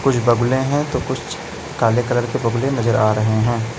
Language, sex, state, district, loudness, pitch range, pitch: Hindi, male, Uttar Pradesh, Lalitpur, -19 LUFS, 115-130 Hz, 120 Hz